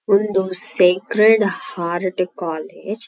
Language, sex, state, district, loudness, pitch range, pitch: Tulu, female, Karnataka, Dakshina Kannada, -18 LUFS, 180-210 Hz, 185 Hz